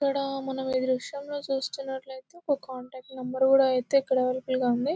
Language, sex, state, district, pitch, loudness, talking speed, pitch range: Telugu, female, Telangana, Nalgonda, 265 Hz, -27 LUFS, 145 wpm, 255-275 Hz